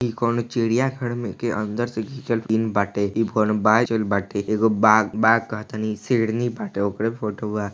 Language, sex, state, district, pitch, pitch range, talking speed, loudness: Bhojpuri, male, Bihar, East Champaran, 110 Hz, 105-115 Hz, 170 wpm, -22 LUFS